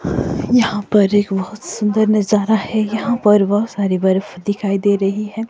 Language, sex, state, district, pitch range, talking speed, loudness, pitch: Hindi, female, Himachal Pradesh, Shimla, 200-215 Hz, 175 wpm, -16 LUFS, 205 Hz